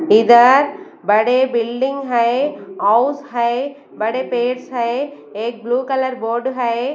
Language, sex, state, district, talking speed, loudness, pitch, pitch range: Hindi, female, Bihar, West Champaran, 120 wpm, -17 LUFS, 245 Hz, 235-265 Hz